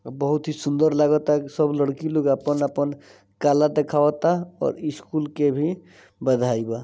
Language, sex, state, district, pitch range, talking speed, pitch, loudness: Bhojpuri, male, Bihar, East Champaran, 140-150 Hz, 160 wpm, 145 Hz, -22 LUFS